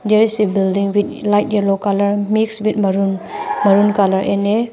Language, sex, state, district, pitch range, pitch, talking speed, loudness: English, female, Arunachal Pradesh, Papum Pare, 195-215 Hz, 205 Hz, 205 wpm, -16 LUFS